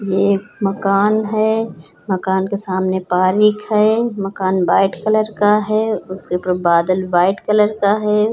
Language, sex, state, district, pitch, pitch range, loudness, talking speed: Hindi, female, Uttar Pradesh, Hamirpur, 200 Hz, 185-210 Hz, -16 LUFS, 150 wpm